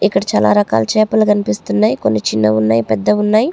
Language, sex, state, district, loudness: Telugu, female, Andhra Pradesh, Chittoor, -14 LUFS